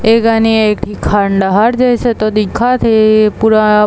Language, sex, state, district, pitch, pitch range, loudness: Chhattisgarhi, female, Chhattisgarh, Bilaspur, 220 Hz, 210-230 Hz, -11 LUFS